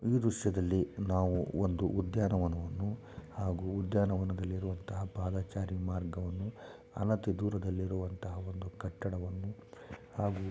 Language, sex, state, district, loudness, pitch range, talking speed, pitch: Kannada, male, Karnataka, Shimoga, -36 LUFS, 95-100 Hz, 90 wpm, 95 Hz